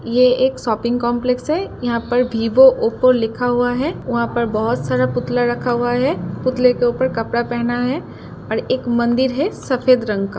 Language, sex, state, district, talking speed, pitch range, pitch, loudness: Hindi, female, Uttar Pradesh, Jalaun, 190 wpm, 235-255 Hz, 245 Hz, -18 LUFS